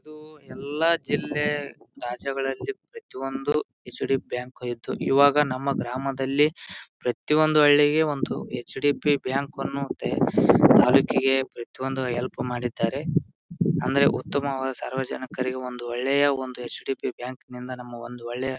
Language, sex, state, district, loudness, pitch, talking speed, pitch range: Kannada, male, Karnataka, Bijapur, -25 LUFS, 135 Hz, 105 wpm, 125-145 Hz